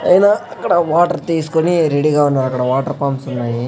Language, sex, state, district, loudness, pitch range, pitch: Telugu, male, Andhra Pradesh, Sri Satya Sai, -15 LUFS, 135-170 Hz, 150 Hz